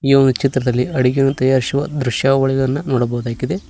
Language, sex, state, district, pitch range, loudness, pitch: Kannada, male, Karnataka, Koppal, 125-135 Hz, -17 LUFS, 135 Hz